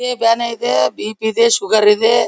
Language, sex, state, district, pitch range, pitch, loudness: Kannada, male, Karnataka, Bellary, 210-230 Hz, 220 Hz, -15 LUFS